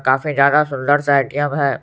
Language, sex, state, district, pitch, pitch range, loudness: Hindi, male, Bihar, Supaul, 140 Hz, 140-145 Hz, -16 LUFS